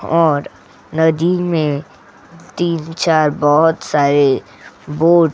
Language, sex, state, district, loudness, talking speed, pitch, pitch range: Hindi, female, Goa, North and South Goa, -15 LUFS, 90 wpm, 160 Hz, 150-165 Hz